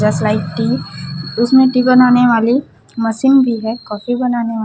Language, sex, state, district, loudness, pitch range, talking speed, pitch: Hindi, female, Chhattisgarh, Raipur, -14 LUFS, 210-250 Hz, 155 wpm, 230 Hz